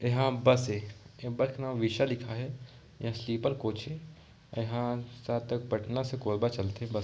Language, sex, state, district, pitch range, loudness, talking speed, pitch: Chhattisgarhi, male, Chhattisgarh, Korba, 115-130 Hz, -32 LUFS, 195 wpm, 120 Hz